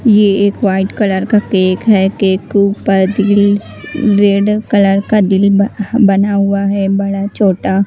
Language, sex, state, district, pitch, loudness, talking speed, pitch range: Hindi, female, Bihar, West Champaran, 200 Hz, -12 LUFS, 150 wpm, 195-205 Hz